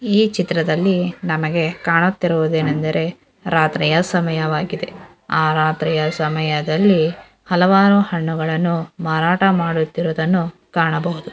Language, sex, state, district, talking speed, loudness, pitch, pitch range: Kannada, female, Karnataka, Dharwad, 75 wpm, -18 LUFS, 165 Hz, 160-180 Hz